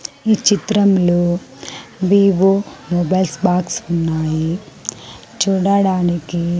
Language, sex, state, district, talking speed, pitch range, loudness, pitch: Telugu, female, Andhra Pradesh, Sri Satya Sai, 65 wpm, 175-195 Hz, -16 LUFS, 185 Hz